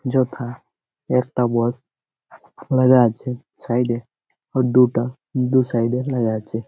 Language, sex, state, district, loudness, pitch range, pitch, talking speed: Bengali, male, West Bengal, Jalpaiguri, -20 LUFS, 120-130 Hz, 125 Hz, 125 wpm